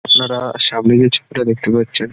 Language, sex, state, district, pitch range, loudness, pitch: Bengali, male, West Bengal, Dakshin Dinajpur, 115-125 Hz, -13 LUFS, 120 Hz